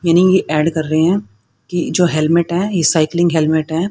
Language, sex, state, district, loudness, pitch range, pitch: Hindi, female, Haryana, Rohtak, -15 LUFS, 155-175 Hz, 165 Hz